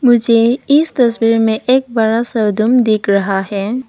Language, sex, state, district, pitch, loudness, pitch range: Hindi, female, Arunachal Pradesh, Papum Pare, 230 Hz, -13 LUFS, 215-250 Hz